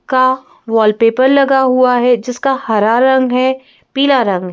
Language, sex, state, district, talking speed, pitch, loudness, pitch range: Hindi, female, Madhya Pradesh, Bhopal, 145 wpm, 255 Hz, -12 LUFS, 230-265 Hz